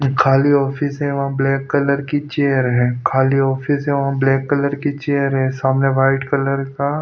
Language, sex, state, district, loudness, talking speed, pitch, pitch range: Hindi, male, Punjab, Pathankot, -17 LUFS, 195 wpm, 140 Hz, 135-140 Hz